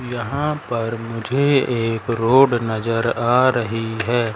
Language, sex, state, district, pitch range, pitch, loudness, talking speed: Hindi, male, Madhya Pradesh, Katni, 115-130 Hz, 120 Hz, -19 LUFS, 125 wpm